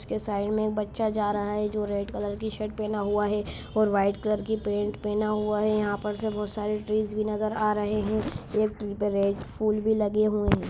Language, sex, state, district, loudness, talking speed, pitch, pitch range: Hindi, female, Bihar, Sitamarhi, -27 LUFS, 260 wpm, 210 Hz, 205-215 Hz